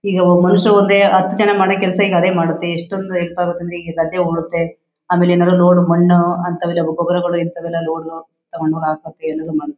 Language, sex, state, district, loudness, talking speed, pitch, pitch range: Kannada, female, Karnataka, Shimoga, -15 LUFS, 190 wpm, 175 Hz, 165-180 Hz